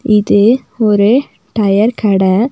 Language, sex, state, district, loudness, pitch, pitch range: Tamil, female, Tamil Nadu, Nilgiris, -11 LUFS, 210 Hz, 200-230 Hz